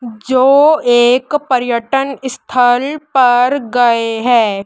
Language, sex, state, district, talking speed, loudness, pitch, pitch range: Hindi, female, Madhya Pradesh, Dhar, 90 wpm, -12 LUFS, 250 Hz, 240-270 Hz